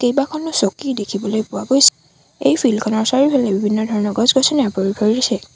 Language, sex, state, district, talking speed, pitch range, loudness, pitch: Assamese, female, Assam, Sonitpur, 150 wpm, 210-270 Hz, -16 LUFS, 230 Hz